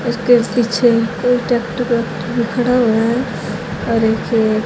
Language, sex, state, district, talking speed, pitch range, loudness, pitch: Hindi, female, Haryana, Jhajjar, 140 wpm, 220-245 Hz, -16 LUFS, 235 Hz